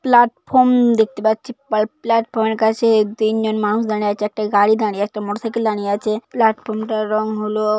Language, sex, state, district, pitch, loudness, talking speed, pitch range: Bengali, female, West Bengal, Paschim Medinipur, 220 Hz, -18 LUFS, 170 wpm, 215-225 Hz